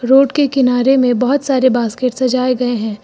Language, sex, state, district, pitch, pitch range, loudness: Hindi, female, Uttar Pradesh, Lucknow, 255 Hz, 245-265 Hz, -14 LUFS